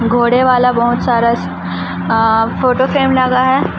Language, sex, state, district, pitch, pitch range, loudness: Hindi, female, Chhattisgarh, Raipur, 240 Hz, 225-255 Hz, -13 LUFS